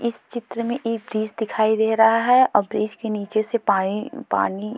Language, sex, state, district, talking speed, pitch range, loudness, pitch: Hindi, female, Uttar Pradesh, Jalaun, 215 wpm, 215-235 Hz, -21 LUFS, 220 Hz